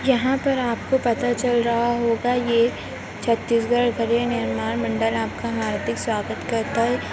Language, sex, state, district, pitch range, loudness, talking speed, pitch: Hindi, female, Chhattisgarh, Bastar, 230-245 Hz, -22 LUFS, 145 wpm, 235 Hz